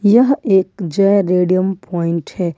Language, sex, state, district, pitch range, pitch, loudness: Hindi, female, Jharkhand, Ranchi, 175-200 Hz, 185 Hz, -15 LUFS